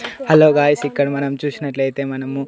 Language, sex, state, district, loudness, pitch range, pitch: Telugu, male, Andhra Pradesh, Annamaya, -17 LUFS, 140-145 Hz, 140 Hz